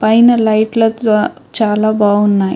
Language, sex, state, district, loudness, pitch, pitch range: Telugu, female, Telangana, Hyderabad, -12 LUFS, 215 Hz, 210-225 Hz